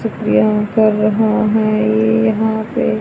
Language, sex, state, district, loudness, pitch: Hindi, female, Haryana, Charkhi Dadri, -14 LUFS, 215 Hz